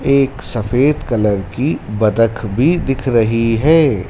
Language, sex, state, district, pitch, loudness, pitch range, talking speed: Hindi, male, Madhya Pradesh, Dhar, 120 Hz, -15 LUFS, 110-140 Hz, 130 wpm